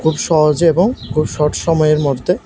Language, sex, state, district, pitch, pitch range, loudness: Bengali, male, Tripura, West Tripura, 155 Hz, 150-165 Hz, -15 LUFS